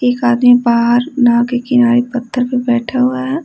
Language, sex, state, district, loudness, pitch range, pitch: Hindi, female, Bihar, Patna, -13 LUFS, 240-250 Hz, 245 Hz